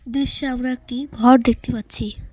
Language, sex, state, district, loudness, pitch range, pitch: Bengali, female, West Bengal, Cooch Behar, -20 LUFS, 230-260 Hz, 255 Hz